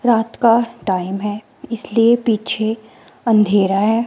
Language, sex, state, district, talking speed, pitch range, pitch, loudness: Hindi, female, Himachal Pradesh, Shimla, 120 wpm, 205-230 Hz, 225 Hz, -17 LUFS